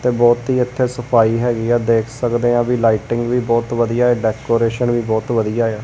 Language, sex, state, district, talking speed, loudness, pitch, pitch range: Punjabi, male, Punjab, Kapurthala, 215 wpm, -17 LUFS, 120 Hz, 115-120 Hz